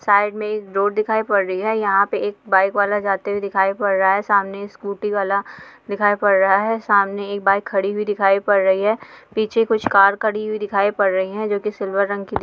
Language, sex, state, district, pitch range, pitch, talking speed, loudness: Hindi, female, Goa, North and South Goa, 195-210 Hz, 200 Hz, 240 wpm, -19 LUFS